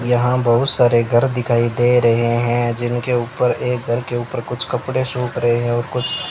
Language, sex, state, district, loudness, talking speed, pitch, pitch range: Hindi, male, Rajasthan, Bikaner, -18 LUFS, 210 wpm, 120 Hz, 120-125 Hz